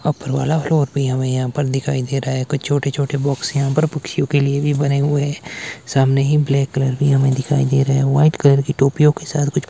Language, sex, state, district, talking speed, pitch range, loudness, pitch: Hindi, male, Himachal Pradesh, Shimla, 255 wpm, 135-145 Hz, -17 LUFS, 140 Hz